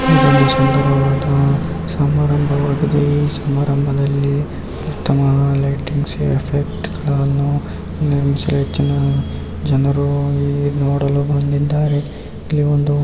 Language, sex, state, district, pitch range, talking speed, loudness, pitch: Kannada, male, Karnataka, Raichur, 135-145 Hz, 75 wpm, -17 LUFS, 140 Hz